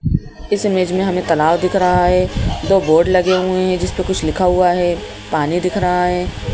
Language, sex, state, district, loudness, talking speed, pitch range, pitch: Hindi, male, Madhya Pradesh, Bhopal, -16 LUFS, 210 wpm, 170-185 Hz, 180 Hz